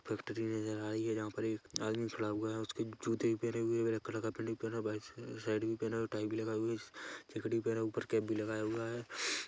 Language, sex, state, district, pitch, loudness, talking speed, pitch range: Hindi, male, Chhattisgarh, Kabirdham, 110 Hz, -38 LUFS, 280 wpm, 110-115 Hz